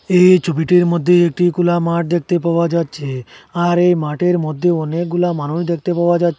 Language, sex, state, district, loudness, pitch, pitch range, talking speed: Bengali, male, Assam, Hailakandi, -16 LUFS, 175 Hz, 165-175 Hz, 170 wpm